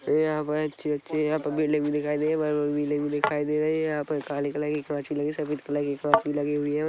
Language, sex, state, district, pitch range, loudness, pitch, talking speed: Hindi, male, Chhattisgarh, Korba, 145-150 Hz, -27 LUFS, 150 Hz, 330 wpm